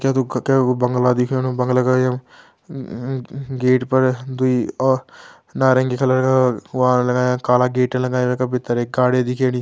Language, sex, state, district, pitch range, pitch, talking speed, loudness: Garhwali, male, Uttarakhand, Tehri Garhwal, 125-130 Hz, 125 Hz, 170 wpm, -18 LUFS